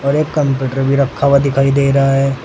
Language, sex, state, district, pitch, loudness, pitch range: Hindi, male, Uttar Pradesh, Saharanpur, 140 Hz, -14 LUFS, 135-140 Hz